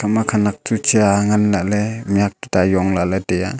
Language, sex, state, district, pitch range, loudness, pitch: Wancho, male, Arunachal Pradesh, Longding, 95-105 Hz, -17 LUFS, 100 Hz